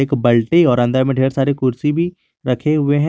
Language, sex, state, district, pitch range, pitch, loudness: Hindi, male, Jharkhand, Garhwa, 130-150 Hz, 135 Hz, -16 LUFS